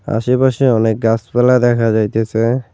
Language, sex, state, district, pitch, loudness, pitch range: Bengali, male, West Bengal, Cooch Behar, 115 Hz, -14 LUFS, 110-125 Hz